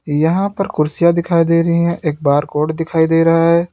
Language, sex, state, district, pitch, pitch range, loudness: Hindi, male, Uttar Pradesh, Lalitpur, 165 Hz, 155-170 Hz, -15 LUFS